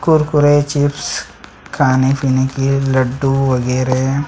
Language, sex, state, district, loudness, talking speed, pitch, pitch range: Hindi, male, Chhattisgarh, Sukma, -15 LUFS, 110 wpm, 135 Hz, 130-145 Hz